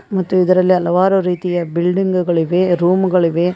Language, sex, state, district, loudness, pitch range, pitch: Kannada, female, Karnataka, Koppal, -15 LUFS, 175-185 Hz, 180 Hz